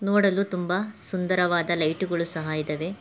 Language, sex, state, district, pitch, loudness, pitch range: Kannada, female, Karnataka, Mysore, 180 Hz, -25 LUFS, 165-195 Hz